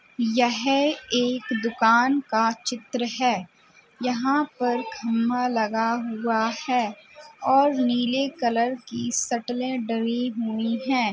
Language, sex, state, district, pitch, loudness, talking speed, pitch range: Hindi, female, Uttar Pradesh, Jalaun, 245 Hz, -24 LUFS, 110 wpm, 230-255 Hz